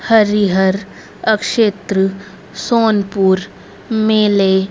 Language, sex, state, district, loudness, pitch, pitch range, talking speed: Hindi, female, Haryana, Rohtak, -15 LUFS, 200 Hz, 190-220 Hz, 50 wpm